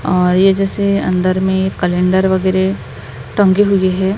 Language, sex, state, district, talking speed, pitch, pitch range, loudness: Hindi, female, Maharashtra, Gondia, 145 wpm, 190 Hz, 180-195 Hz, -14 LUFS